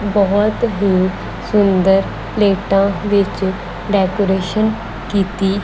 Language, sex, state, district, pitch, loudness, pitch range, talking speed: Punjabi, female, Punjab, Kapurthala, 195 Hz, -16 LUFS, 190-205 Hz, 75 wpm